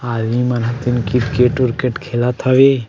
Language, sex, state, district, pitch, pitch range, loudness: Chhattisgarhi, male, Chhattisgarh, Sukma, 125 Hz, 120-125 Hz, -16 LUFS